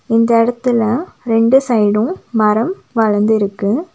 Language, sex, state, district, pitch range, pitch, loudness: Tamil, female, Tamil Nadu, Nilgiris, 215-245 Hz, 225 Hz, -15 LUFS